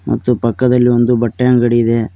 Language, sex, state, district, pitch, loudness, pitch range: Kannada, male, Karnataka, Koppal, 120 Hz, -13 LUFS, 115-125 Hz